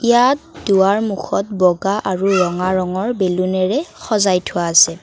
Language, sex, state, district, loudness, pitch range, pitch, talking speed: Assamese, female, Assam, Kamrup Metropolitan, -17 LUFS, 185-210 Hz, 190 Hz, 130 wpm